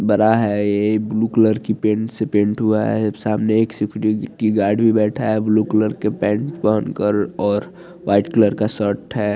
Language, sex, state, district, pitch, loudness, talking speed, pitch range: Hindi, male, Chandigarh, Chandigarh, 110 Hz, -18 LUFS, 165 wpm, 105-110 Hz